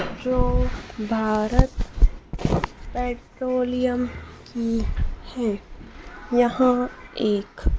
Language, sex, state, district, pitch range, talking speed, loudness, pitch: Hindi, female, Madhya Pradesh, Dhar, 220-250 Hz, 55 wpm, -24 LUFS, 245 Hz